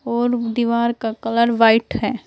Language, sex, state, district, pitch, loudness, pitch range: Hindi, female, Uttar Pradesh, Shamli, 235 Hz, -18 LUFS, 225-235 Hz